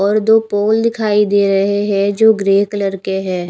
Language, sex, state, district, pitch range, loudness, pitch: Hindi, female, Haryana, Rohtak, 195-215 Hz, -14 LUFS, 205 Hz